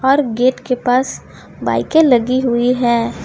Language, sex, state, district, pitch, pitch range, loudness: Hindi, female, Jharkhand, Palamu, 250 Hz, 240-260 Hz, -15 LUFS